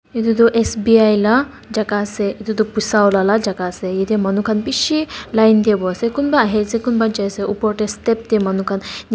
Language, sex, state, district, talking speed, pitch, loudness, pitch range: Nagamese, female, Nagaland, Dimapur, 235 wpm, 215 Hz, -17 LUFS, 205-225 Hz